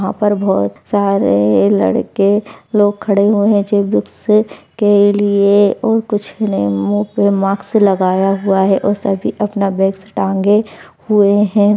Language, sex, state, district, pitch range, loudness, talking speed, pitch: Hindi, male, Bihar, Madhepura, 195-205 Hz, -14 LUFS, 140 wpm, 200 Hz